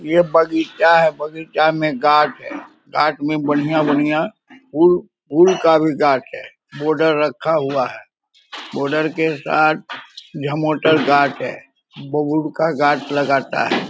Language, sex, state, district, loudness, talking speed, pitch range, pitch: Hindi, male, Bihar, Samastipur, -17 LUFS, 140 wpm, 150-160 Hz, 155 Hz